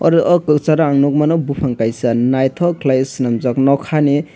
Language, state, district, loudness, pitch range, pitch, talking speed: Kokborok, Tripura, West Tripura, -15 LUFS, 130-155 Hz, 140 Hz, 150 wpm